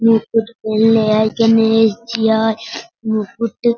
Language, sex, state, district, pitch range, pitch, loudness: Hindi, female, Bihar, Sitamarhi, 220-230 Hz, 225 Hz, -15 LUFS